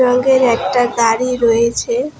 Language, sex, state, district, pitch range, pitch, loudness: Bengali, female, West Bengal, Alipurduar, 235-255 Hz, 245 Hz, -14 LUFS